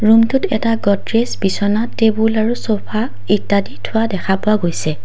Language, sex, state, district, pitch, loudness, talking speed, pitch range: Assamese, female, Assam, Kamrup Metropolitan, 215 Hz, -16 LUFS, 145 wpm, 200-225 Hz